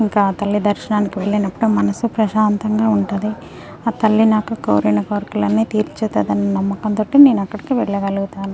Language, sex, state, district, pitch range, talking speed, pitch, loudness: Telugu, female, Telangana, Nalgonda, 195-220 Hz, 135 wpm, 210 Hz, -17 LUFS